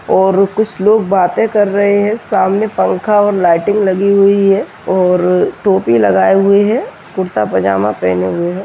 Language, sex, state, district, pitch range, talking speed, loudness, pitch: Hindi, male, Bihar, Jahanabad, 175-205 Hz, 165 wpm, -12 LUFS, 195 Hz